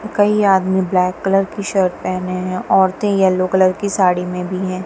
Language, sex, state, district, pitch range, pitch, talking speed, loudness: Hindi, female, Punjab, Kapurthala, 185-195 Hz, 190 Hz, 195 wpm, -16 LUFS